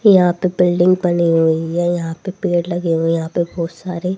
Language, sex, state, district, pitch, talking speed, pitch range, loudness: Hindi, female, Haryana, Rohtak, 175 Hz, 230 wpm, 165-180 Hz, -17 LUFS